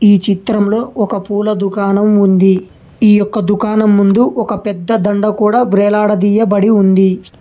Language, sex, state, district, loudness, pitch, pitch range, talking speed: Telugu, male, Telangana, Hyderabad, -12 LUFS, 205 Hz, 200-215 Hz, 130 wpm